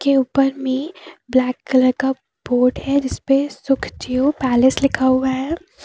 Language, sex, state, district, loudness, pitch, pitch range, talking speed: Hindi, female, Jharkhand, Deoghar, -18 LUFS, 265 Hz, 255-275 Hz, 145 wpm